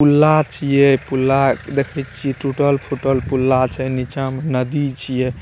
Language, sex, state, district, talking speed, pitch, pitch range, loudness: Maithili, male, Bihar, Saharsa, 135 wpm, 135 Hz, 130-140 Hz, -18 LUFS